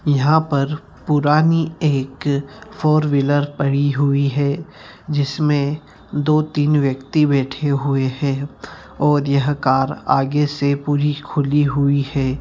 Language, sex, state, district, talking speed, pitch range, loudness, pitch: Hindi, male, Bihar, Jamui, 120 wpm, 140-150 Hz, -18 LUFS, 145 Hz